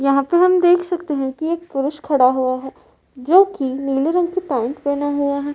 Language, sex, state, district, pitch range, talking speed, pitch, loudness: Hindi, female, Uttar Pradesh, Varanasi, 270-345 Hz, 215 wpm, 285 Hz, -18 LUFS